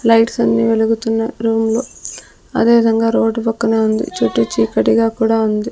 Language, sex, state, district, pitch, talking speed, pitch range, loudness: Telugu, female, Andhra Pradesh, Sri Satya Sai, 225 Hz, 155 wpm, 220-230 Hz, -15 LUFS